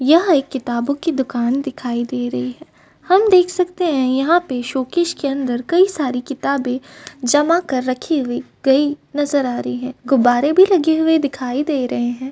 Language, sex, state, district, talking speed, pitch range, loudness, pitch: Hindi, female, Uttar Pradesh, Varanasi, 185 wpm, 250-320 Hz, -18 LUFS, 275 Hz